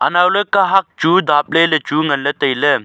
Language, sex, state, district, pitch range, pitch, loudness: Wancho, male, Arunachal Pradesh, Longding, 145-175 Hz, 155 Hz, -14 LUFS